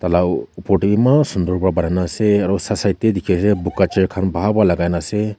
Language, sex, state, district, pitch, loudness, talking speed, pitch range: Nagamese, male, Nagaland, Kohima, 95 Hz, -17 LUFS, 245 wpm, 90-105 Hz